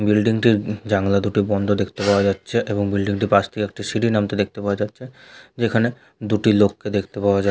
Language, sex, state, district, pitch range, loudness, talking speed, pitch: Bengali, male, West Bengal, Jhargram, 100-110 Hz, -20 LUFS, 210 wpm, 105 Hz